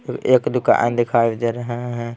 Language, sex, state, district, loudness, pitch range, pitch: Hindi, male, Bihar, Patna, -19 LUFS, 115-120 Hz, 120 Hz